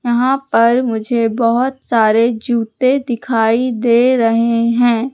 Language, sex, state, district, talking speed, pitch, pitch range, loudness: Hindi, female, Madhya Pradesh, Katni, 115 wpm, 235 Hz, 230-250 Hz, -14 LUFS